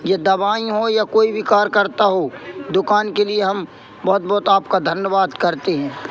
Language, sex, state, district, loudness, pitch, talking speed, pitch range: Hindi, male, Madhya Pradesh, Katni, -18 LUFS, 200 Hz, 185 wpm, 190-210 Hz